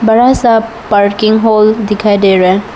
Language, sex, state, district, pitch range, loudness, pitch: Hindi, female, Arunachal Pradesh, Lower Dibang Valley, 205-225 Hz, -9 LUFS, 215 Hz